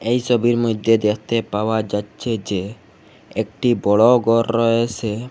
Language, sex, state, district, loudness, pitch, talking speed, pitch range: Bengali, male, Assam, Hailakandi, -19 LUFS, 115 Hz, 125 wpm, 105-115 Hz